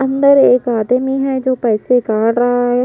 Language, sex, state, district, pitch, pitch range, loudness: Hindi, female, Bihar, Patna, 250 Hz, 235-265 Hz, -13 LUFS